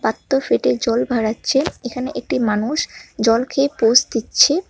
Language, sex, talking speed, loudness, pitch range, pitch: Bengali, male, 130 wpm, -18 LUFS, 225-275 Hz, 245 Hz